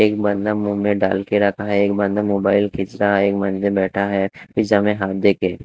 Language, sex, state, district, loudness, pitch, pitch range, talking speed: Hindi, male, Delhi, New Delhi, -19 LUFS, 100 Hz, 100-105 Hz, 245 wpm